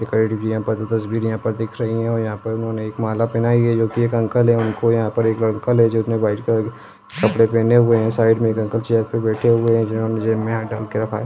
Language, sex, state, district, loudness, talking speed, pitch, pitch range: Hindi, male, Bihar, Vaishali, -19 LUFS, 275 wpm, 115 Hz, 110-115 Hz